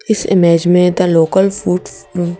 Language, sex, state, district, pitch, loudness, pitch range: Hindi, female, Madhya Pradesh, Bhopal, 180 Hz, -13 LUFS, 175-190 Hz